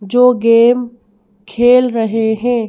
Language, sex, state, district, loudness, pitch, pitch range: Hindi, female, Madhya Pradesh, Bhopal, -12 LUFS, 230 Hz, 220-245 Hz